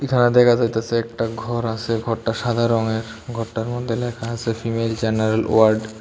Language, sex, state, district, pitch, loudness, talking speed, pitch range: Bengali, male, Tripura, West Tripura, 115 Hz, -20 LUFS, 170 wpm, 110-120 Hz